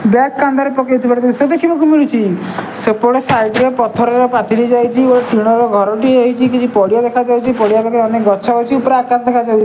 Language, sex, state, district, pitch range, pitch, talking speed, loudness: Odia, male, Odisha, Nuapada, 225-255 Hz, 245 Hz, 170 wpm, -12 LUFS